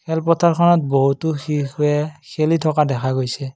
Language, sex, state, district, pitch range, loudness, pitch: Assamese, male, Assam, Kamrup Metropolitan, 140-160 Hz, -18 LUFS, 150 Hz